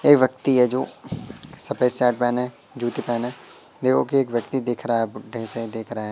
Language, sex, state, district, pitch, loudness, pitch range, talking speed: Hindi, male, Madhya Pradesh, Katni, 120 Hz, -22 LUFS, 115-125 Hz, 215 wpm